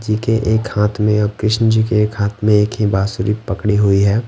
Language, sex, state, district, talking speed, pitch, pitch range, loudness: Hindi, male, Bihar, West Champaran, 250 wpm, 105 Hz, 105-110 Hz, -16 LUFS